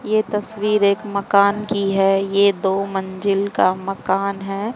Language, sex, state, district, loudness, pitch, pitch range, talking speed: Hindi, female, Haryana, Charkhi Dadri, -19 LUFS, 200 Hz, 195-205 Hz, 150 wpm